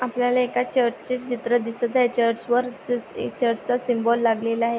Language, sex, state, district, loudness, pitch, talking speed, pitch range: Marathi, female, Maharashtra, Pune, -23 LUFS, 245 Hz, 190 wpm, 235-250 Hz